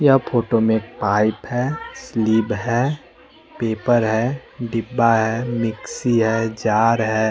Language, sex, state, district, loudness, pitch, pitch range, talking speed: Hindi, male, Bihar, West Champaran, -20 LUFS, 115 Hz, 110-120 Hz, 130 wpm